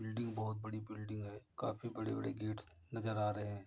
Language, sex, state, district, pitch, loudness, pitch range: Hindi, male, Uttar Pradesh, Jalaun, 110 Hz, -43 LUFS, 105-110 Hz